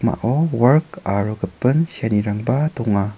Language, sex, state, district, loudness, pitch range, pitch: Garo, male, Meghalaya, South Garo Hills, -19 LUFS, 105-145 Hz, 120 Hz